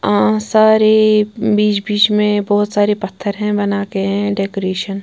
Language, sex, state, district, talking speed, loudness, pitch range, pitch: Hindi, female, Punjab, Kapurthala, 155 wpm, -15 LUFS, 200-210 Hz, 205 Hz